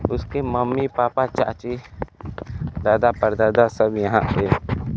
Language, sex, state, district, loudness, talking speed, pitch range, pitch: Hindi, male, Bihar, Kaimur, -21 LUFS, 110 wpm, 105-125 Hz, 120 Hz